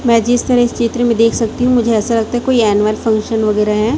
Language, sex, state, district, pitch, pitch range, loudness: Hindi, female, Chhattisgarh, Raipur, 230 Hz, 220-240 Hz, -14 LUFS